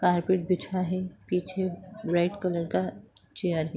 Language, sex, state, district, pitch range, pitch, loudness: Bhojpuri, female, Bihar, Saran, 165-185 Hz, 180 Hz, -29 LUFS